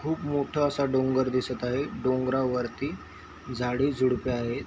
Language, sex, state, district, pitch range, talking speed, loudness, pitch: Marathi, male, Maharashtra, Chandrapur, 125-140 Hz, 130 wpm, -28 LUFS, 130 Hz